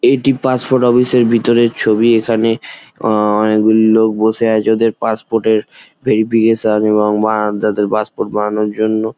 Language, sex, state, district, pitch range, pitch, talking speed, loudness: Bengali, male, West Bengal, Jalpaiguri, 110-115 Hz, 110 Hz, 145 wpm, -14 LUFS